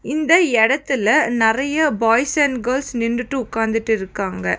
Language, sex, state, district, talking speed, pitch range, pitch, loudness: Tamil, female, Tamil Nadu, Nilgiris, 105 wpm, 225-280 Hz, 245 Hz, -18 LUFS